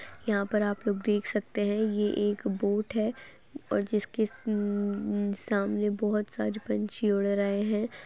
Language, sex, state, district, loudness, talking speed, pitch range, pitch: Hindi, female, Uttar Pradesh, Etah, -29 LUFS, 155 wpm, 200-215 Hz, 205 Hz